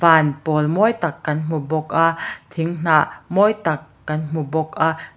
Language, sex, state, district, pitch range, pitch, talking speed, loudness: Mizo, female, Mizoram, Aizawl, 155-165 Hz, 160 Hz, 175 wpm, -20 LUFS